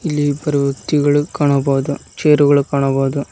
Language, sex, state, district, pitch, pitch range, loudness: Kannada, male, Karnataka, Koppal, 145 Hz, 140-145 Hz, -16 LUFS